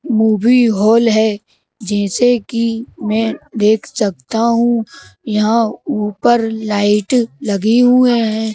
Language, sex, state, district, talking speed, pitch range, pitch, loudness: Hindi, male, Madhya Pradesh, Bhopal, 105 wpm, 210-235 Hz, 225 Hz, -14 LUFS